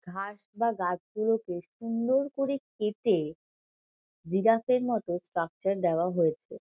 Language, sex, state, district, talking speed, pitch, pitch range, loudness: Bengali, female, West Bengal, Kolkata, 110 wpm, 200 Hz, 175-230 Hz, -29 LUFS